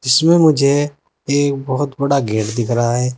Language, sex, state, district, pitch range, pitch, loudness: Hindi, male, Uttar Pradesh, Saharanpur, 125-145 Hz, 140 Hz, -16 LUFS